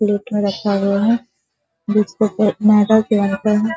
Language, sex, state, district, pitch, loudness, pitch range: Hindi, female, Bihar, Sitamarhi, 210 Hz, -16 LUFS, 205-215 Hz